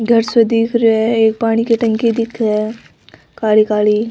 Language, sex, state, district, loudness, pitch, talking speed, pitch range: Rajasthani, female, Rajasthan, Nagaur, -14 LUFS, 225 Hz, 190 wpm, 215-230 Hz